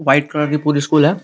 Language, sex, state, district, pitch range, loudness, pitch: Hindi, male, Uttar Pradesh, Gorakhpur, 145-150 Hz, -16 LUFS, 150 Hz